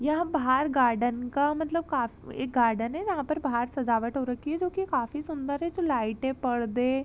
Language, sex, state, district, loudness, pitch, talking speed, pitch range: Hindi, female, Uttar Pradesh, Jalaun, -28 LUFS, 270 Hz, 220 wpm, 245-315 Hz